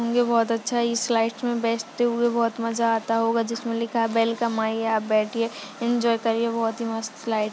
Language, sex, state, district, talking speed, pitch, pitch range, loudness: Hindi, male, Maharashtra, Dhule, 215 wpm, 230 Hz, 225-235 Hz, -24 LUFS